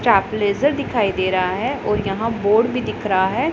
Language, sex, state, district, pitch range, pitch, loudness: Hindi, female, Punjab, Pathankot, 195-245 Hz, 210 Hz, -19 LUFS